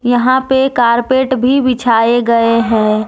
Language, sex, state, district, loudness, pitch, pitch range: Hindi, female, Jharkhand, Deoghar, -12 LUFS, 240 Hz, 230-260 Hz